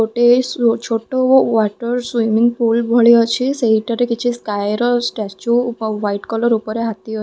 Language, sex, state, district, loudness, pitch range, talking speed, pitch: Odia, female, Odisha, Khordha, -16 LUFS, 220-240 Hz, 165 wpm, 230 Hz